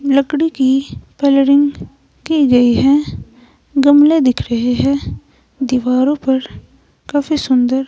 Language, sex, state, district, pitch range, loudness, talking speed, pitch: Hindi, female, Himachal Pradesh, Shimla, 260-290 Hz, -14 LUFS, 115 wpm, 275 Hz